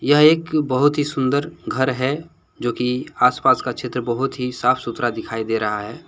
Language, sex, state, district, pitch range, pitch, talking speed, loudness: Hindi, male, Jharkhand, Deoghar, 120-145 Hz, 130 Hz, 190 wpm, -20 LUFS